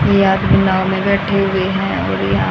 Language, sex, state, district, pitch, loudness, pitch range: Hindi, female, Haryana, Rohtak, 195 Hz, -15 LUFS, 190-195 Hz